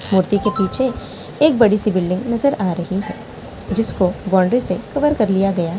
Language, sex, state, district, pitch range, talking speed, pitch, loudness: Hindi, female, Delhi, New Delhi, 185-230 Hz, 115 wpm, 200 Hz, -18 LUFS